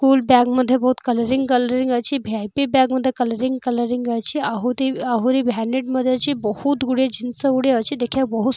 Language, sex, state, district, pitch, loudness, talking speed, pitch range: Odia, female, Odisha, Nuapada, 255 Hz, -19 LUFS, 180 wpm, 245-265 Hz